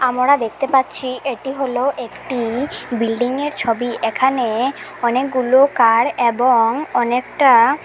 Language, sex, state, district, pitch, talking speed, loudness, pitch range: Bengali, female, Assam, Hailakandi, 255 Hz, 100 wpm, -17 LUFS, 235-270 Hz